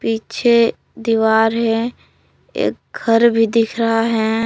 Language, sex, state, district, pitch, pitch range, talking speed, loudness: Hindi, female, Jharkhand, Palamu, 225 Hz, 225-230 Hz, 120 wpm, -16 LUFS